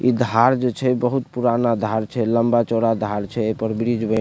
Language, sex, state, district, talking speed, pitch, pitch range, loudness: Maithili, male, Bihar, Supaul, 240 wpm, 115 Hz, 110-125 Hz, -20 LUFS